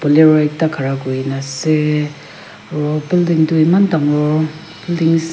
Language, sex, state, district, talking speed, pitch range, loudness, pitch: Nagamese, female, Nagaland, Kohima, 145 wpm, 150-160 Hz, -15 LUFS, 155 Hz